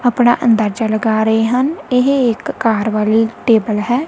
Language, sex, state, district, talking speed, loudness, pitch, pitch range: Punjabi, female, Punjab, Kapurthala, 160 wpm, -14 LUFS, 225 Hz, 220-245 Hz